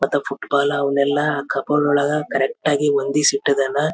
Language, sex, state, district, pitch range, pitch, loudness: Kannada, male, Karnataka, Belgaum, 140-150 Hz, 145 Hz, -19 LUFS